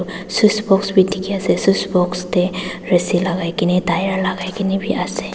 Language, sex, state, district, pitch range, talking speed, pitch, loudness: Nagamese, female, Nagaland, Dimapur, 180-195 Hz, 180 wpm, 185 Hz, -18 LUFS